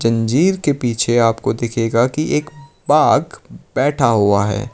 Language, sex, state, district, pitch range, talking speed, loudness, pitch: Hindi, male, Uttar Pradesh, Lucknow, 115-145 Hz, 140 wpm, -16 LUFS, 120 Hz